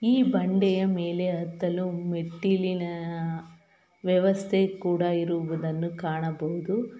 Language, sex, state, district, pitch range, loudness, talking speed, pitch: Kannada, female, Karnataka, Mysore, 170-190 Hz, -27 LUFS, 75 wpm, 175 Hz